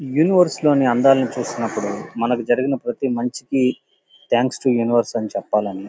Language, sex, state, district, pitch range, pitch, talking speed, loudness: Telugu, male, Andhra Pradesh, Guntur, 115-135 Hz, 125 Hz, 130 wpm, -19 LUFS